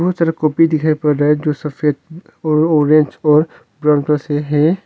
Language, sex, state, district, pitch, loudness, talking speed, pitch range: Hindi, male, Arunachal Pradesh, Longding, 155 Hz, -15 LUFS, 195 wpm, 150-160 Hz